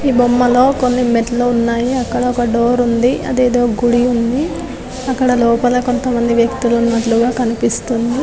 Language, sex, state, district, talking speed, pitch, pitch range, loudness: Telugu, female, Telangana, Nalgonda, 140 wpm, 245 Hz, 235-250 Hz, -14 LUFS